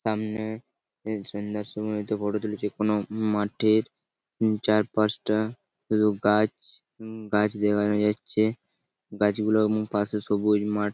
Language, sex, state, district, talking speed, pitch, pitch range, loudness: Bengali, male, West Bengal, Purulia, 115 wpm, 105 Hz, 105-110 Hz, -26 LUFS